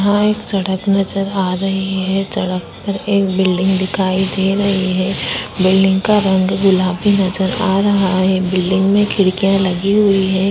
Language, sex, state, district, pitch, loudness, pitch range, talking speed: Hindi, female, Uttar Pradesh, Hamirpur, 190 Hz, -15 LUFS, 190-200 Hz, 165 wpm